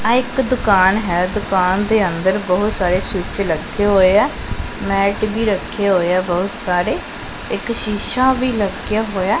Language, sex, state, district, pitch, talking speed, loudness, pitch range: Punjabi, male, Punjab, Pathankot, 200 Hz, 160 wpm, -17 LUFS, 185-215 Hz